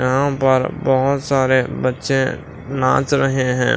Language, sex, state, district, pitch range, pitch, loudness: Hindi, male, Maharashtra, Washim, 130-135 Hz, 130 Hz, -17 LUFS